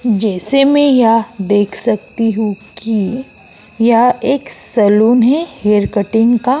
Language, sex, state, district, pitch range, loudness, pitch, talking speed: Hindi, female, Uttar Pradesh, Jyotiba Phule Nagar, 210-250 Hz, -13 LUFS, 230 Hz, 125 wpm